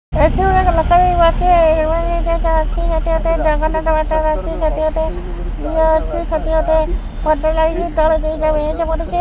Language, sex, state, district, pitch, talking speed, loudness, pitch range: Odia, male, Odisha, Khordha, 320 Hz, 110 wpm, -16 LUFS, 315-335 Hz